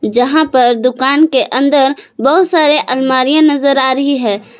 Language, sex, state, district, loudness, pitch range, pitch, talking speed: Hindi, female, Jharkhand, Palamu, -11 LUFS, 255-295 Hz, 270 Hz, 155 wpm